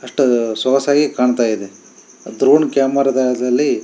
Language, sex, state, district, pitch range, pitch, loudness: Kannada, male, Karnataka, Shimoga, 125-140 Hz, 130 Hz, -15 LUFS